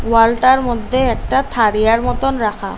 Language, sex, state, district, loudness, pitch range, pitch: Bengali, female, Assam, Hailakandi, -15 LUFS, 220-255 Hz, 235 Hz